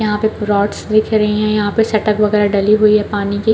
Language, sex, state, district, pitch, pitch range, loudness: Hindi, female, Chhattisgarh, Balrampur, 210 Hz, 205-215 Hz, -14 LUFS